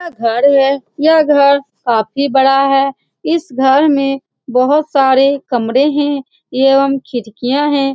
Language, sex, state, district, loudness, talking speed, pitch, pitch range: Hindi, female, Bihar, Saran, -13 LUFS, 135 wpm, 275 Hz, 260-285 Hz